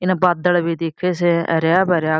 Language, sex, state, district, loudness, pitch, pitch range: Marwari, female, Rajasthan, Churu, -18 LUFS, 175 Hz, 165-180 Hz